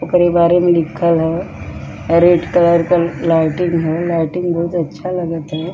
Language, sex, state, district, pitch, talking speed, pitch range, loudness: Hindi, female, Bihar, Vaishali, 170 Hz, 155 wpm, 160-175 Hz, -15 LUFS